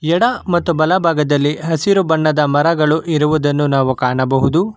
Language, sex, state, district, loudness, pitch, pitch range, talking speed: Kannada, male, Karnataka, Bangalore, -15 LUFS, 155 Hz, 145-170 Hz, 115 wpm